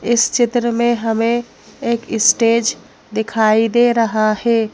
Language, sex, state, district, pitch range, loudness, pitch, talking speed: Hindi, female, Madhya Pradesh, Bhopal, 225-235 Hz, -16 LUFS, 230 Hz, 125 wpm